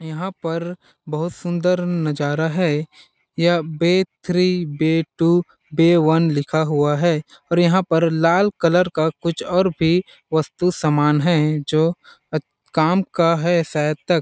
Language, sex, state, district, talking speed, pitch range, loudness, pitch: Hindi, male, Chhattisgarh, Balrampur, 145 wpm, 155-175 Hz, -19 LUFS, 165 Hz